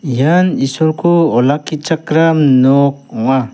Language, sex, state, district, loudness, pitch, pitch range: Garo, male, Meghalaya, South Garo Hills, -12 LUFS, 145 Hz, 135-165 Hz